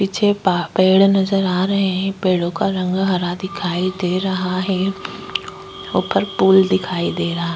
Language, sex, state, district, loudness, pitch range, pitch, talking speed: Hindi, female, Uttar Pradesh, Jyotiba Phule Nagar, -18 LUFS, 180-195 Hz, 185 Hz, 165 wpm